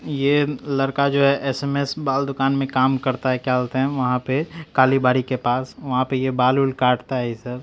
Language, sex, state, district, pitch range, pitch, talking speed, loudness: Hindi, male, Bihar, Katihar, 130-140 Hz, 130 Hz, 220 wpm, -21 LUFS